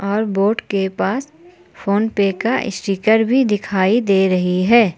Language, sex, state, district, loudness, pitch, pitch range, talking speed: Hindi, female, Jharkhand, Palamu, -17 LUFS, 205 Hz, 195-230 Hz, 145 wpm